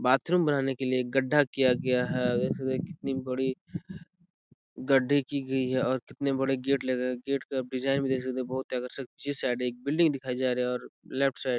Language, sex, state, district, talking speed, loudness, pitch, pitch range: Hindi, male, Chhattisgarh, Korba, 240 wpm, -28 LUFS, 130 Hz, 130-140 Hz